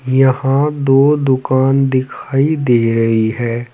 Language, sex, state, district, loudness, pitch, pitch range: Hindi, male, Uttar Pradesh, Saharanpur, -14 LUFS, 130 Hz, 120-135 Hz